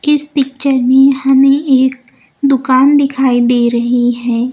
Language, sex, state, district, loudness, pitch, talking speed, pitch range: Hindi, female, Uttar Pradesh, Lucknow, -11 LUFS, 265 Hz, 130 wpm, 245-275 Hz